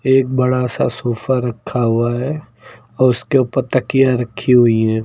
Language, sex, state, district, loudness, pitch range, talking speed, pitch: Hindi, male, Uttar Pradesh, Lucknow, -16 LUFS, 120-130 Hz, 165 wpm, 125 Hz